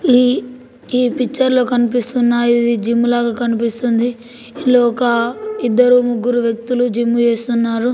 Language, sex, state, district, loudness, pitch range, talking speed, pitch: Telugu, female, Telangana, Nalgonda, -15 LUFS, 235-250 Hz, 105 wpm, 240 Hz